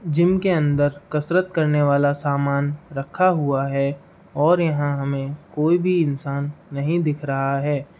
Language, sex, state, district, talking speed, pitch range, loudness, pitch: Hindi, male, Uttar Pradesh, Gorakhpur, 150 wpm, 140-170 Hz, -21 LUFS, 145 Hz